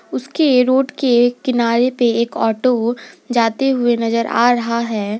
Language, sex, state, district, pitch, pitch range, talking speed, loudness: Hindi, female, Jharkhand, Garhwa, 240 Hz, 230-255 Hz, 150 wpm, -16 LUFS